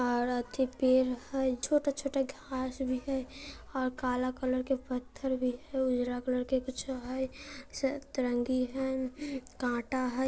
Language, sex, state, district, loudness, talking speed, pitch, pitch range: Maithili, female, Bihar, Samastipur, -33 LUFS, 145 wpm, 260 Hz, 255-270 Hz